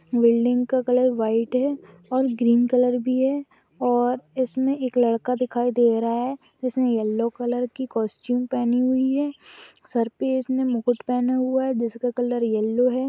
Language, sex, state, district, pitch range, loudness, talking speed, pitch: Magahi, female, Bihar, Gaya, 240-260 Hz, -23 LUFS, 160 wpm, 250 Hz